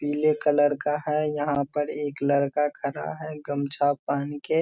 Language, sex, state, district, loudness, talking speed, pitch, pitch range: Hindi, male, Bihar, Darbhanga, -26 LUFS, 180 wpm, 145 Hz, 145-150 Hz